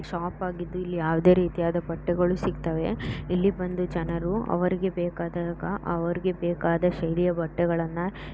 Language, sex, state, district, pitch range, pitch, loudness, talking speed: Kannada, female, Karnataka, Dakshina Kannada, 170-180 Hz, 175 Hz, -27 LUFS, 115 wpm